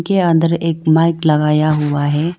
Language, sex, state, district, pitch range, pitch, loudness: Hindi, female, Arunachal Pradesh, Lower Dibang Valley, 150-165 Hz, 160 Hz, -15 LUFS